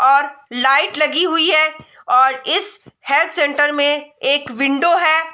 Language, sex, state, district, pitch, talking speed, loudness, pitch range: Hindi, female, Bihar, Saharsa, 290 Hz, 145 wpm, -15 LUFS, 275-320 Hz